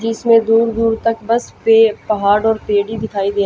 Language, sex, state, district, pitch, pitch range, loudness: Hindi, female, Haryana, Jhajjar, 225 Hz, 215-225 Hz, -15 LUFS